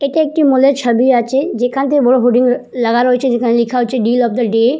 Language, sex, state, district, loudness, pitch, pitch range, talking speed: Bengali, female, West Bengal, Purulia, -13 LUFS, 250 Hz, 240-270 Hz, 210 wpm